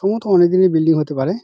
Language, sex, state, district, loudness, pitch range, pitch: Bengali, male, West Bengal, Dakshin Dinajpur, -15 LUFS, 160-195 Hz, 180 Hz